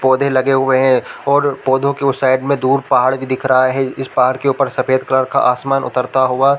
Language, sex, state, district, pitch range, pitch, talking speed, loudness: Hindi, male, Chhattisgarh, Balrampur, 130-135 Hz, 130 Hz, 245 wpm, -15 LUFS